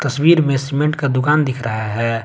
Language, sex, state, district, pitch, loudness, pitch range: Hindi, male, Jharkhand, Garhwa, 140 Hz, -17 LUFS, 115-150 Hz